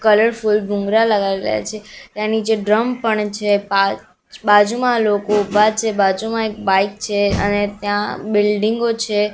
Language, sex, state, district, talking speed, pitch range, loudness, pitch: Gujarati, female, Gujarat, Gandhinagar, 140 wpm, 205-220 Hz, -17 LUFS, 210 Hz